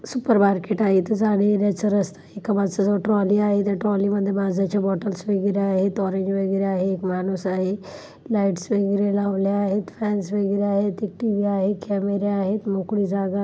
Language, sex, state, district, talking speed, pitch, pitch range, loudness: Marathi, female, Maharashtra, Solapur, 175 wpm, 200 Hz, 195-205 Hz, -22 LUFS